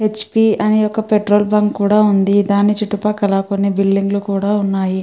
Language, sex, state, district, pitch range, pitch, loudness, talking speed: Telugu, female, Andhra Pradesh, Chittoor, 200-210 Hz, 205 Hz, -15 LUFS, 145 wpm